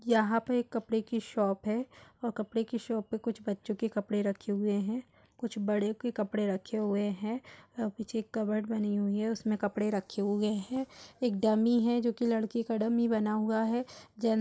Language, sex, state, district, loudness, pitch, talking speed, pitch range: Hindi, female, Chhattisgarh, Raigarh, -32 LUFS, 220 Hz, 205 wpm, 210-230 Hz